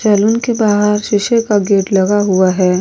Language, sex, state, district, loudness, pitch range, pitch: Hindi, female, Goa, North and South Goa, -13 LUFS, 195-215 Hz, 205 Hz